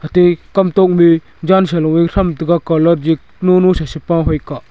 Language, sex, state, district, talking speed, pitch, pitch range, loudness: Wancho, male, Arunachal Pradesh, Longding, 205 wpm, 170 Hz, 160-180 Hz, -13 LUFS